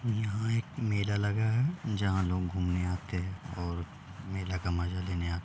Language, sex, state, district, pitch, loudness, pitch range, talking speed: Hindi, male, Uttar Pradesh, Ghazipur, 95 Hz, -32 LUFS, 90-110 Hz, 185 wpm